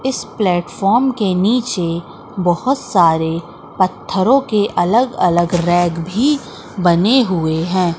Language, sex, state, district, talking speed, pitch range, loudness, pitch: Hindi, female, Madhya Pradesh, Katni, 115 wpm, 175-235 Hz, -16 LUFS, 185 Hz